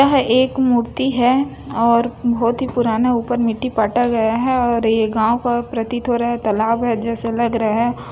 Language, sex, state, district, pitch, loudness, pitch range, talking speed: Hindi, female, Chhattisgarh, Bilaspur, 235 Hz, -18 LUFS, 230-245 Hz, 175 wpm